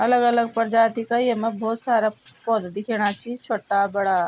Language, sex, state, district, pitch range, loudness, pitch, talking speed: Garhwali, female, Uttarakhand, Tehri Garhwal, 205-235 Hz, -22 LUFS, 225 Hz, 180 wpm